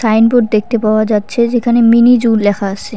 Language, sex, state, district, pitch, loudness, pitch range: Bengali, female, West Bengal, Cooch Behar, 225 Hz, -11 LUFS, 215-235 Hz